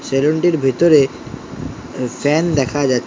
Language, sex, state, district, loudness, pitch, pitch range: Bengali, male, West Bengal, Alipurduar, -16 LUFS, 140 Hz, 130-155 Hz